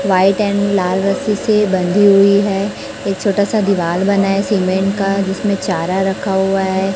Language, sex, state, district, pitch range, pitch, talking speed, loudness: Hindi, male, Chhattisgarh, Raipur, 190-200 Hz, 195 Hz, 180 wpm, -15 LUFS